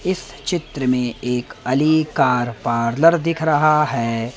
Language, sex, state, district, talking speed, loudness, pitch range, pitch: Hindi, male, Madhya Pradesh, Umaria, 135 wpm, -19 LUFS, 120-155 Hz, 140 Hz